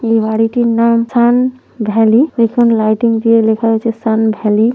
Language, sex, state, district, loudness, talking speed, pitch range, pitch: Bengali, female, West Bengal, North 24 Parganas, -12 LUFS, 165 wpm, 220-235 Hz, 230 Hz